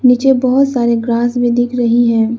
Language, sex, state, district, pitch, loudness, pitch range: Hindi, female, Arunachal Pradesh, Lower Dibang Valley, 240 Hz, -13 LUFS, 235-255 Hz